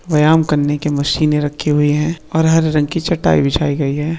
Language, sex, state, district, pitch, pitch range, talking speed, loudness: Hindi, male, Bihar, Begusarai, 150 Hz, 145-160 Hz, 215 wpm, -15 LUFS